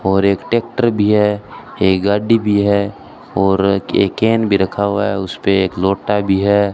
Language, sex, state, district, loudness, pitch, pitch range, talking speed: Hindi, male, Rajasthan, Bikaner, -15 LUFS, 100 Hz, 95-105 Hz, 195 wpm